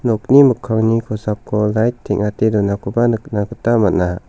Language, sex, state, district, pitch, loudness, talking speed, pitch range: Garo, male, Meghalaya, South Garo Hills, 110 Hz, -16 LUFS, 125 wpm, 105-120 Hz